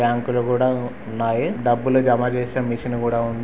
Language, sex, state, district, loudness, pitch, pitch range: Telugu, male, Andhra Pradesh, Srikakulam, -21 LUFS, 120 Hz, 120-125 Hz